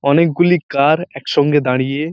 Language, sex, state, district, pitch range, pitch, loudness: Bengali, male, West Bengal, Purulia, 140-165 Hz, 145 Hz, -15 LUFS